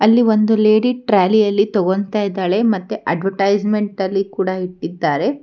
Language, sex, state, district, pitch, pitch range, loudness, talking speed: Kannada, female, Karnataka, Bangalore, 205 Hz, 195-215 Hz, -17 LUFS, 120 wpm